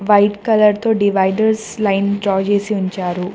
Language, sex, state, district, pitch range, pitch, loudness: Telugu, female, Telangana, Mahabubabad, 195-215 Hz, 205 Hz, -16 LUFS